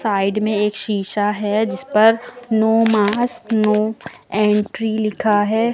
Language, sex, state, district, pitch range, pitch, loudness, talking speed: Hindi, female, Uttar Pradesh, Lucknow, 210-225 Hz, 215 Hz, -18 LUFS, 135 wpm